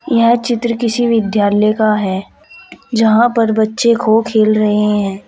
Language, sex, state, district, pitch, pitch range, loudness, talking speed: Hindi, female, Uttar Pradesh, Saharanpur, 220 Hz, 210-235 Hz, -13 LUFS, 145 wpm